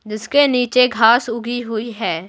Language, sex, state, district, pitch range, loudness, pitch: Hindi, female, Bihar, Patna, 220-250 Hz, -16 LUFS, 235 Hz